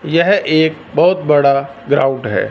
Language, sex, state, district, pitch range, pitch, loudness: Hindi, male, Punjab, Fazilka, 140-160 Hz, 145 Hz, -14 LUFS